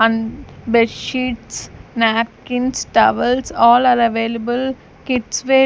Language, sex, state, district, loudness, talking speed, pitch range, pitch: English, female, Maharashtra, Gondia, -17 LUFS, 105 wpm, 230-255 Hz, 240 Hz